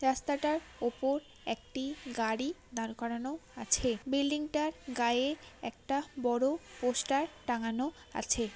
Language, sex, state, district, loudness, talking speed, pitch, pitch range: Bengali, female, West Bengal, Paschim Medinipur, -34 LUFS, 105 wpm, 265 Hz, 240-285 Hz